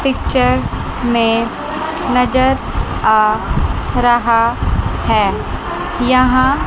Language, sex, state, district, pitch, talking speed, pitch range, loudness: Hindi, female, Chandigarh, Chandigarh, 240 Hz, 65 wpm, 225-260 Hz, -15 LUFS